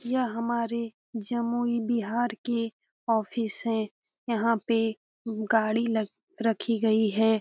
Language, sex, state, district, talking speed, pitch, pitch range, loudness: Hindi, female, Bihar, Jamui, 120 wpm, 230 Hz, 220-235 Hz, -28 LUFS